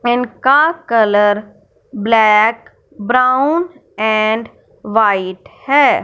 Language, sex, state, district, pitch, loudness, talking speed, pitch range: Hindi, male, Punjab, Fazilka, 225 Hz, -14 LUFS, 80 wpm, 215-270 Hz